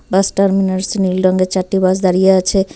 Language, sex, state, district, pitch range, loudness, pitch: Bengali, female, West Bengal, Cooch Behar, 185-195 Hz, -14 LUFS, 190 Hz